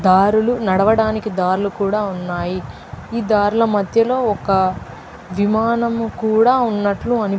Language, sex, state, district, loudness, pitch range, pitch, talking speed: Telugu, female, Andhra Pradesh, Chittoor, -17 LUFS, 195-230 Hz, 210 Hz, 115 wpm